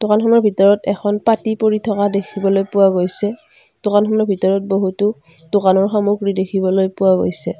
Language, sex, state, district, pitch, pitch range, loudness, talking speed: Assamese, female, Assam, Kamrup Metropolitan, 200 Hz, 190-210 Hz, -16 LUFS, 135 wpm